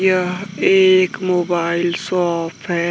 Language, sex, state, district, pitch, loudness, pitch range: Hindi, male, Jharkhand, Deoghar, 180 Hz, -17 LUFS, 170-185 Hz